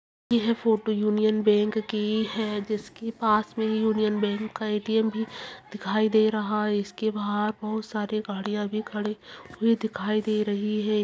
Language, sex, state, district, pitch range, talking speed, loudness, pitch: Hindi, female, Chhattisgarh, Kabirdham, 210-220 Hz, 165 wpm, -26 LUFS, 215 Hz